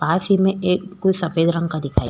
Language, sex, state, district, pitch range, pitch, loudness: Hindi, female, Uttar Pradesh, Etah, 165-190 Hz, 180 Hz, -19 LUFS